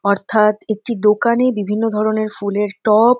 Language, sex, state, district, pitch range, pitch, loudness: Bengali, female, West Bengal, North 24 Parganas, 205-225 Hz, 215 Hz, -16 LUFS